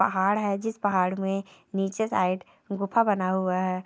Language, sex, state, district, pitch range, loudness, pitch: Hindi, female, Bihar, Jamui, 185-205 Hz, -27 LUFS, 195 Hz